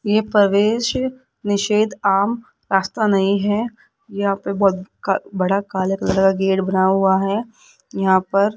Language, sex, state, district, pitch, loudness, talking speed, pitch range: Hindi, female, Rajasthan, Jaipur, 200 Hz, -19 LUFS, 155 wpm, 195-215 Hz